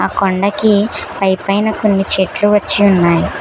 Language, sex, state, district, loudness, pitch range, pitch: Telugu, female, Telangana, Hyderabad, -13 LUFS, 190-205 Hz, 200 Hz